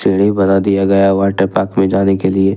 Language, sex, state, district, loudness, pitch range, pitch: Hindi, male, Jharkhand, Ranchi, -13 LUFS, 95-100 Hz, 95 Hz